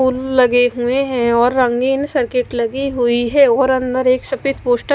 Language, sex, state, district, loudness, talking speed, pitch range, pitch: Hindi, female, Odisha, Malkangiri, -15 LUFS, 195 wpm, 245-265 Hz, 255 Hz